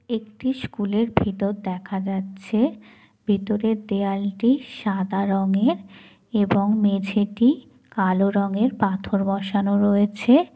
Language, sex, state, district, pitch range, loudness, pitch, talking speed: Bengali, female, West Bengal, Jalpaiguri, 195-220 Hz, -22 LUFS, 205 Hz, 100 wpm